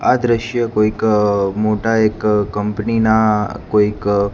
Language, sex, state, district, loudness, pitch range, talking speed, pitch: Gujarati, male, Gujarat, Gandhinagar, -16 LUFS, 105-110 Hz, 110 wpm, 105 Hz